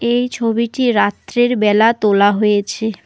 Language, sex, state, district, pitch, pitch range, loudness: Bengali, female, West Bengal, Alipurduar, 220 Hz, 205-240 Hz, -15 LUFS